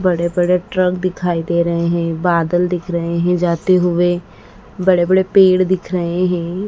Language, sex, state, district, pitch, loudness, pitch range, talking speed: Hindi, female, Madhya Pradesh, Dhar, 175 Hz, -16 LUFS, 170-185 Hz, 170 wpm